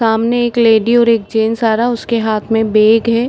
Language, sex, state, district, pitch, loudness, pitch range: Hindi, female, Uttar Pradesh, Etah, 225 Hz, -13 LUFS, 220-235 Hz